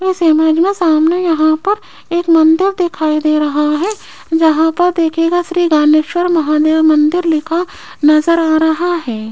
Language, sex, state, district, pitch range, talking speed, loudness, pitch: Hindi, female, Rajasthan, Jaipur, 310-350 Hz, 155 wpm, -13 LUFS, 325 Hz